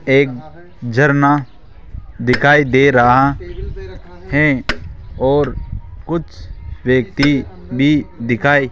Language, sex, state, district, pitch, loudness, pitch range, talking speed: Hindi, male, Rajasthan, Jaipur, 125 Hz, -14 LUFS, 95-140 Hz, 80 wpm